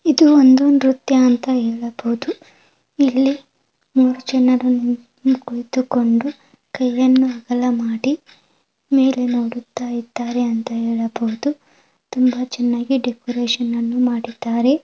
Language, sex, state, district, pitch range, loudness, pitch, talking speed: Kannada, female, Karnataka, Gulbarga, 240-265 Hz, -18 LUFS, 250 Hz, 95 wpm